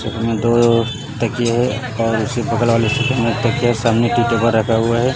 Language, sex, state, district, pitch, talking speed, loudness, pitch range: Hindi, male, Chhattisgarh, Raipur, 115 Hz, 105 wpm, -17 LUFS, 115-120 Hz